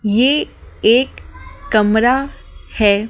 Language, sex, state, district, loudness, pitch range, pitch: Hindi, female, Delhi, New Delhi, -15 LUFS, 215-255 Hz, 225 Hz